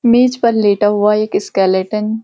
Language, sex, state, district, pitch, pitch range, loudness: Hindi, female, Uttarakhand, Uttarkashi, 210 Hz, 205-230 Hz, -14 LUFS